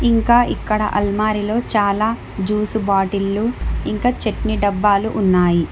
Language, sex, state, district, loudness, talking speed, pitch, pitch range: Telugu, female, Telangana, Hyderabad, -18 LUFS, 105 wpm, 210 Hz, 200-220 Hz